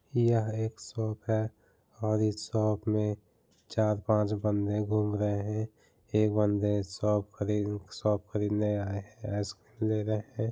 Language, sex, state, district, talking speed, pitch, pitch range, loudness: Hindi, male, Bihar, Muzaffarpur, 145 wpm, 105 Hz, 105-110 Hz, -31 LUFS